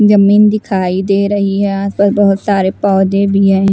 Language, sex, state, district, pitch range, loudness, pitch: Hindi, female, Bihar, West Champaran, 195-205 Hz, -12 LUFS, 200 Hz